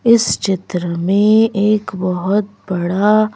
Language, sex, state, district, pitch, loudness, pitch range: Hindi, female, Madhya Pradesh, Bhopal, 200 Hz, -16 LUFS, 185-215 Hz